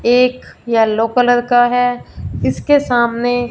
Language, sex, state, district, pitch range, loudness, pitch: Hindi, female, Punjab, Fazilka, 235-245 Hz, -14 LUFS, 245 Hz